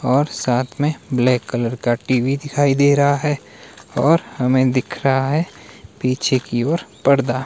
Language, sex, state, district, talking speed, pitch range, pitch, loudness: Hindi, male, Himachal Pradesh, Shimla, 160 wpm, 125-145 Hz, 130 Hz, -18 LUFS